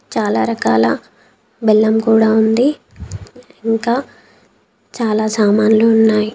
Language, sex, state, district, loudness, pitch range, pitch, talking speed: Telugu, female, Telangana, Komaram Bheem, -14 LUFS, 215-230 Hz, 220 Hz, 85 wpm